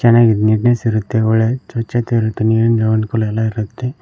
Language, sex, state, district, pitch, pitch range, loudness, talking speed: Kannada, male, Karnataka, Koppal, 115 Hz, 110-120 Hz, -15 LUFS, 135 wpm